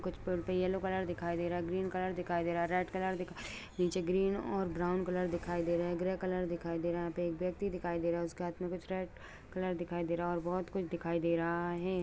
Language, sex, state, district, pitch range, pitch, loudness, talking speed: Hindi, female, Bihar, East Champaran, 170-185 Hz, 180 Hz, -36 LUFS, 290 wpm